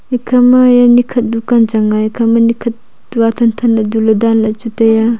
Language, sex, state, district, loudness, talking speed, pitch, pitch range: Wancho, female, Arunachal Pradesh, Longding, -11 LUFS, 230 wpm, 230 Hz, 225-240 Hz